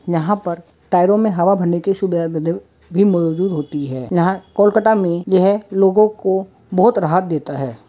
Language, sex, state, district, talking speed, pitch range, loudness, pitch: Hindi, male, West Bengal, Kolkata, 165 wpm, 170-195 Hz, -17 LUFS, 185 Hz